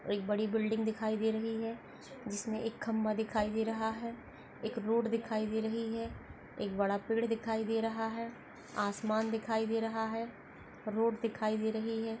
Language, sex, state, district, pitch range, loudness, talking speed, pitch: Hindi, female, Goa, North and South Goa, 220-225 Hz, -35 LUFS, 185 wpm, 225 Hz